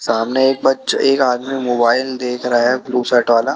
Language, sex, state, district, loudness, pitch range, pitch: Hindi, male, Chhattisgarh, Raipur, -16 LUFS, 120-130 Hz, 125 Hz